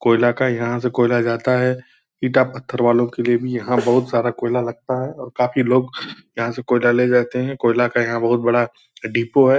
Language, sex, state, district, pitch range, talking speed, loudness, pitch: Hindi, male, Bihar, Purnia, 120-125 Hz, 220 wpm, -19 LUFS, 120 Hz